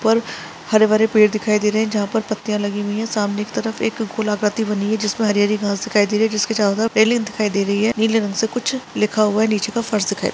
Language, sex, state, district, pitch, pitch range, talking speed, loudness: Hindi, female, Chhattisgarh, Sarguja, 215 Hz, 210-225 Hz, 285 wpm, -19 LUFS